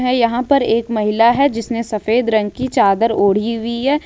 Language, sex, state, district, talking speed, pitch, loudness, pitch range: Hindi, female, Jharkhand, Ranchi, 190 wpm, 230 Hz, -16 LUFS, 220-250 Hz